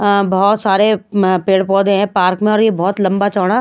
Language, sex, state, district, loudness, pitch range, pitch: Hindi, female, Bihar, Patna, -14 LUFS, 190-205 Hz, 200 Hz